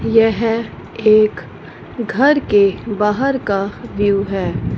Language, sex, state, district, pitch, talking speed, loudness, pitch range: Hindi, female, Punjab, Fazilka, 215 Hz, 100 wpm, -16 LUFS, 200-230 Hz